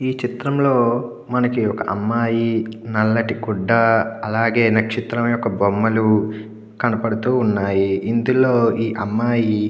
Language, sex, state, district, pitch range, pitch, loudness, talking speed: Telugu, male, Andhra Pradesh, Anantapur, 110-120 Hz, 115 Hz, -19 LUFS, 100 wpm